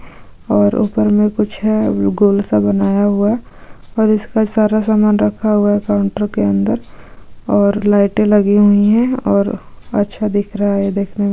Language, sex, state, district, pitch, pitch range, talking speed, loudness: Hindi, female, Maharashtra, Aurangabad, 205 Hz, 200-215 Hz, 165 wpm, -14 LUFS